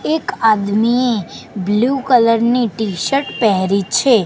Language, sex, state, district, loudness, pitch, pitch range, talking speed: Gujarati, female, Gujarat, Gandhinagar, -15 LUFS, 230 Hz, 205-250 Hz, 110 wpm